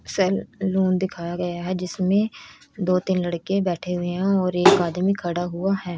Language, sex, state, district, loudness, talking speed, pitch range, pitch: Hindi, female, Haryana, Rohtak, -23 LUFS, 160 wpm, 175-190 Hz, 185 Hz